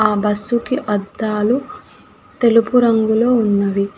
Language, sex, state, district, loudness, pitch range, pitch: Telugu, female, Telangana, Hyderabad, -16 LUFS, 210-240 Hz, 220 Hz